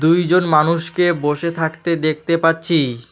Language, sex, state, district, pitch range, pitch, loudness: Bengali, male, West Bengal, Alipurduar, 155-170 Hz, 165 Hz, -17 LUFS